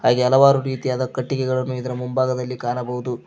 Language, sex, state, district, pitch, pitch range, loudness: Kannada, male, Karnataka, Koppal, 130 Hz, 125-130 Hz, -20 LUFS